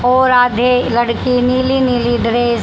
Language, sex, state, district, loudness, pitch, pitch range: Hindi, female, Haryana, Rohtak, -13 LUFS, 245 Hz, 240-250 Hz